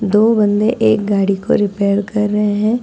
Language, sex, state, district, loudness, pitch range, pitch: Hindi, female, Delhi, New Delhi, -15 LUFS, 205-220 Hz, 210 Hz